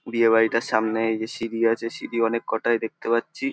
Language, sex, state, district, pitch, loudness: Bengali, male, West Bengal, North 24 Parganas, 115 Hz, -23 LUFS